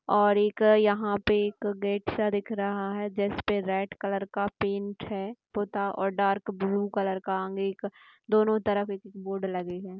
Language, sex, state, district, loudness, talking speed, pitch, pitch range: Marathi, female, Maharashtra, Sindhudurg, -28 LUFS, 175 wpm, 200 Hz, 195-205 Hz